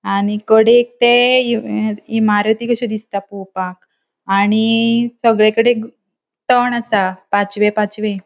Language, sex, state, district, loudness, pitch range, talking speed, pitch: Konkani, female, Goa, North and South Goa, -15 LUFS, 205-235 Hz, 95 wpm, 215 Hz